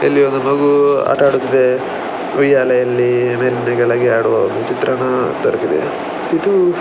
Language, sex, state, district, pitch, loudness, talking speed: Kannada, male, Karnataka, Dakshina Kannada, 140 Hz, -15 LUFS, 125 wpm